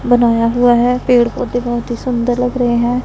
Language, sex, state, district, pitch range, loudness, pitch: Hindi, female, Punjab, Pathankot, 240-250 Hz, -14 LUFS, 245 Hz